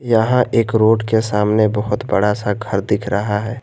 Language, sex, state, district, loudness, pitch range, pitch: Hindi, male, Jharkhand, Garhwa, -17 LUFS, 105-115 Hz, 110 Hz